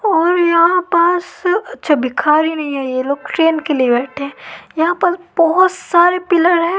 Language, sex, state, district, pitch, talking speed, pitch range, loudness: Hindi, female, Madhya Pradesh, Katni, 335 Hz, 175 wpm, 300-355 Hz, -14 LUFS